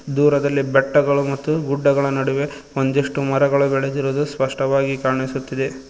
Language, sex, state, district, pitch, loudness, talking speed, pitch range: Kannada, male, Karnataka, Koppal, 140 Hz, -19 LUFS, 100 wpm, 135-140 Hz